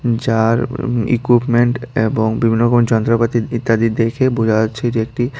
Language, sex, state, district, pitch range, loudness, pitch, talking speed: Bengali, female, Tripura, West Tripura, 115-120 Hz, -16 LUFS, 115 Hz, 145 wpm